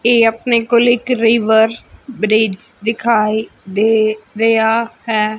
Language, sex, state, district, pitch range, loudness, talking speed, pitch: Punjabi, female, Punjab, Fazilka, 215-235 Hz, -14 LUFS, 110 wpm, 225 Hz